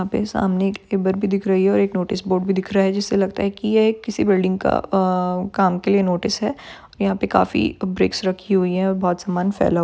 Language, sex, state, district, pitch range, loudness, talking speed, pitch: Hindi, female, Chhattisgarh, Rajnandgaon, 185-200 Hz, -20 LUFS, 205 wpm, 190 Hz